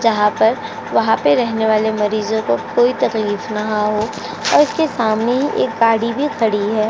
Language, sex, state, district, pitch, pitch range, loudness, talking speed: Hindi, female, Uttar Pradesh, Jyotiba Phule Nagar, 220 Hz, 215-235 Hz, -17 LUFS, 175 wpm